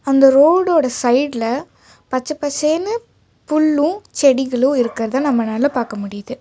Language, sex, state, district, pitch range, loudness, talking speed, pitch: Tamil, female, Tamil Nadu, Nilgiris, 245-305 Hz, -17 LUFS, 95 wpm, 270 Hz